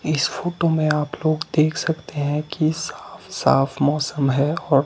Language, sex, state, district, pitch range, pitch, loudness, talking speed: Hindi, male, Himachal Pradesh, Shimla, 145-155 Hz, 150 Hz, -21 LUFS, 175 wpm